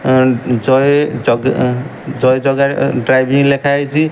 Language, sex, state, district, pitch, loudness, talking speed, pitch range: Odia, male, Odisha, Malkangiri, 135 Hz, -13 LUFS, 115 wpm, 130-140 Hz